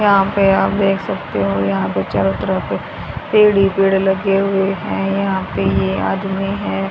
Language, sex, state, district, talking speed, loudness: Hindi, female, Haryana, Rohtak, 180 wpm, -16 LUFS